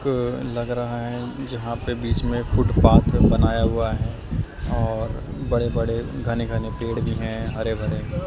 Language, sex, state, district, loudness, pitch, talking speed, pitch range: Hindi, male, Delhi, New Delhi, -23 LUFS, 115 Hz, 160 wpm, 110-120 Hz